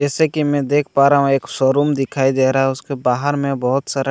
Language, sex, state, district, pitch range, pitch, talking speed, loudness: Hindi, male, Bihar, Katihar, 135-145 Hz, 140 Hz, 250 wpm, -17 LUFS